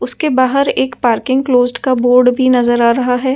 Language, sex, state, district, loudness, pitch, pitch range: Hindi, female, Delhi, New Delhi, -13 LUFS, 250 Hz, 245-260 Hz